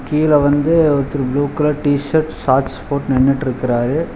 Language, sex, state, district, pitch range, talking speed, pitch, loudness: Tamil, male, Tamil Nadu, Chennai, 135-150 Hz, 130 wpm, 145 Hz, -16 LUFS